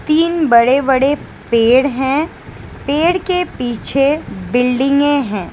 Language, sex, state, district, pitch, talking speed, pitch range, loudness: Hindi, female, Gujarat, Valsad, 275 Hz, 110 wpm, 245-305 Hz, -14 LUFS